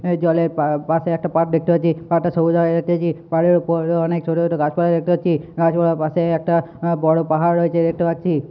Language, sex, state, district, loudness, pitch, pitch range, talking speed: Bengali, male, West Bengal, Purulia, -18 LUFS, 165 Hz, 165-170 Hz, 195 wpm